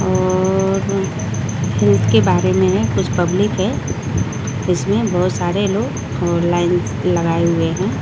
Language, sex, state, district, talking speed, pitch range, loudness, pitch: Hindi, female, Maharashtra, Mumbai Suburban, 135 wpm, 110-175 Hz, -17 LUFS, 165 Hz